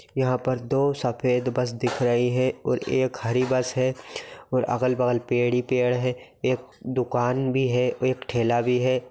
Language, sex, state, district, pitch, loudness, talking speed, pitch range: Hindi, male, Bihar, Saran, 125 Hz, -24 LUFS, 180 wpm, 125-130 Hz